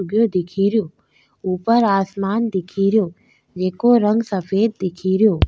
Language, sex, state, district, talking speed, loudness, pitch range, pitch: Rajasthani, female, Rajasthan, Nagaur, 85 wpm, -19 LUFS, 185-220 Hz, 195 Hz